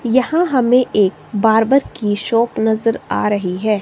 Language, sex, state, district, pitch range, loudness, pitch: Hindi, female, Himachal Pradesh, Shimla, 205-250 Hz, -16 LUFS, 220 Hz